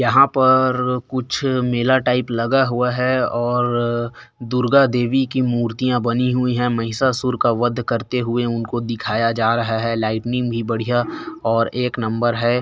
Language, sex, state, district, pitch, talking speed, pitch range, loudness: Chhattisgarhi, male, Chhattisgarh, Korba, 120 Hz, 155 wpm, 115-125 Hz, -19 LUFS